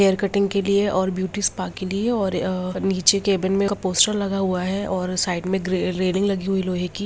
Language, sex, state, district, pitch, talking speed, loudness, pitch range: Hindi, female, Bihar, Begusarai, 190 Hz, 240 wpm, -22 LUFS, 185-200 Hz